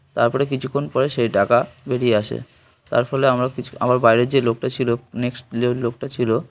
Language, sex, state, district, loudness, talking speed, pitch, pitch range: Bengali, male, West Bengal, North 24 Parganas, -20 LUFS, 140 wpm, 125 Hz, 120-130 Hz